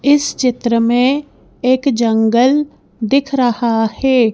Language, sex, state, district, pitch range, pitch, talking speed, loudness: Hindi, female, Madhya Pradesh, Bhopal, 235-275 Hz, 250 Hz, 110 wpm, -14 LUFS